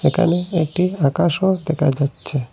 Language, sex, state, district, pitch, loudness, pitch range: Bengali, male, Assam, Hailakandi, 165 Hz, -19 LUFS, 140-180 Hz